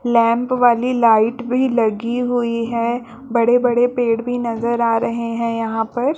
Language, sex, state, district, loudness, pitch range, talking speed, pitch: Hindi, female, Chhattisgarh, Balrampur, -18 LUFS, 230-245 Hz, 165 wpm, 235 Hz